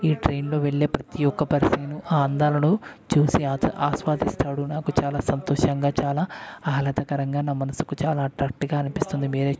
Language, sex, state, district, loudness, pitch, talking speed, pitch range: Telugu, male, Andhra Pradesh, Guntur, -24 LUFS, 145 Hz, 150 wpm, 140-150 Hz